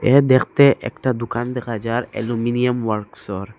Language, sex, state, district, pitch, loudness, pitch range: Bengali, male, Assam, Hailakandi, 120 Hz, -19 LUFS, 115-130 Hz